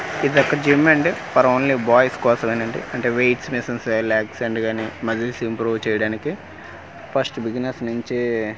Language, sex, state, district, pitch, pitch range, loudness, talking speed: Telugu, male, Andhra Pradesh, Manyam, 120 Hz, 115-130 Hz, -20 LUFS, 140 wpm